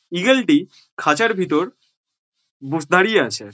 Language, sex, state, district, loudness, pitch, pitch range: Bengali, male, West Bengal, Jhargram, -18 LUFS, 175 Hz, 150-230 Hz